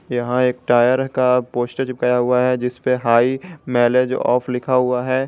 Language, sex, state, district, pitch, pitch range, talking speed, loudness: Hindi, male, Jharkhand, Garhwa, 125 Hz, 125-130 Hz, 180 wpm, -18 LUFS